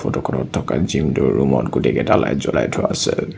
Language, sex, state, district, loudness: Assamese, male, Assam, Sonitpur, -18 LUFS